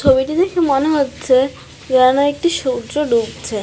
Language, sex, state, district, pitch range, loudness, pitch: Bengali, female, West Bengal, North 24 Parganas, 255-295 Hz, -16 LUFS, 270 Hz